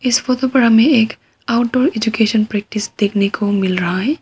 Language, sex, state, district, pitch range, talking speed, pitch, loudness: Hindi, female, Arunachal Pradesh, Papum Pare, 205-255 Hz, 185 wpm, 225 Hz, -15 LUFS